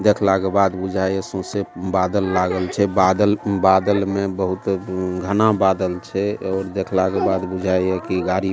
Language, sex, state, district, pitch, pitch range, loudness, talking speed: Maithili, male, Bihar, Supaul, 95 Hz, 95-100 Hz, -20 LUFS, 175 wpm